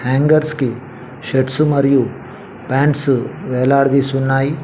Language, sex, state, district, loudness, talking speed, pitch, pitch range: Telugu, male, Telangana, Mahabubabad, -16 LUFS, 90 wpm, 135 Hz, 130-140 Hz